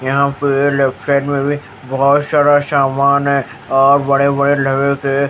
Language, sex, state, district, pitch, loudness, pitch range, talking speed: Hindi, male, Haryana, Jhajjar, 140 Hz, -14 LUFS, 135-140 Hz, 160 wpm